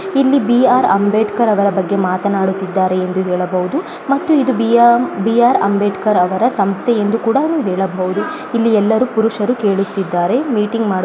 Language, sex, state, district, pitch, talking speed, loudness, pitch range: Kannada, female, Karnataka, Bellary, 215 Hz, 130 wpm, -15 LUFS, 195-245 Hz